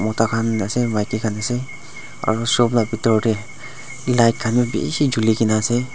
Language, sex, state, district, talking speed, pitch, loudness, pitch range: Nagamese, male, Nagaland, Dimapur, 170 wpm, 115 Hz, -19 LUFS, 110-125 Hz